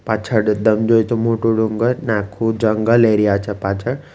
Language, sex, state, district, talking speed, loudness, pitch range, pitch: Gujarati, male, Gujarat, Valsad, 175 wpm, -17 LUFS, 105-115 Hz, 110 Hz